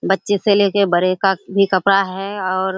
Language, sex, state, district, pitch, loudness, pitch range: Hindi, female, Bihar, Kishanganj, 195 Hz, -17 LUFS, 190-200 Hz